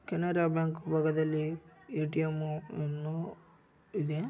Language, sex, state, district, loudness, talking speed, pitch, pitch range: Kannada, male, Karnataka, Raichur, -33 LUFS, 85 wpm, 155 Hz, 155-165 Hz